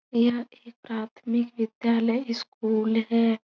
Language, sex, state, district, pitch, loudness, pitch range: Hindi, female, Bihar, Supaul, 230 Hz, -26 LUFS, 225-235 Hz